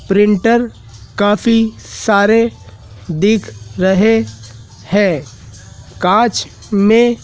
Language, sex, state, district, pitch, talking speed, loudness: Hindi, male, Madhya Pradesh, Dhar, 195 Hz, 65 wpm, -14 LUFS